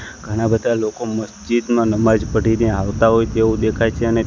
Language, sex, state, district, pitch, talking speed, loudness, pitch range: Gujarati, male, Gujarat, Gandhinagar, 110 Hz, 170 wpm, -18 LUFS, 110-115 Hz